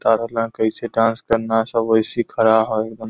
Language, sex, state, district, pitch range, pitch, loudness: Magahi, male, Bihar, Lakhisarai, 110-115 Hz, 115 Hz, -18 LUFS